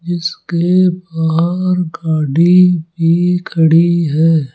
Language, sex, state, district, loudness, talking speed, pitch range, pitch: Hindi, male, Rajasthan, Jaipur, -13 LUFS, 80 wpm, 160-180 Hz, 170 Hz